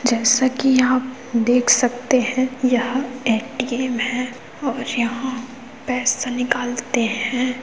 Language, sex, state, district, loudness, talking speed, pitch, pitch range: Hindi, female, Chhattisgarh, Kabirdham, -20 LUFS, 125 wpm, 250 Hz, 245-255 Hz